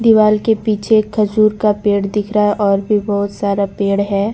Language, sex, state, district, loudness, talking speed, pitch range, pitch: Hindi, female, Jharkhand, Deoghar, -15 LUFS, 205 wpm, 200-215 Hz, 210 Hz